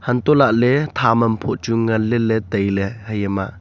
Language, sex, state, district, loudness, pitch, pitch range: Wancho, male, Arunachal Pradesh, Longding, -18 LUFS, 115 Hz, 105-125 Hz